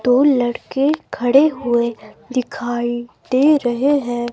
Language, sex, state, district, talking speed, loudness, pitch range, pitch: Hindi, female, Himachal Pradesh, Shimla, 110 wpm, -18 LUFS, 240-275 Hz, 245 Hz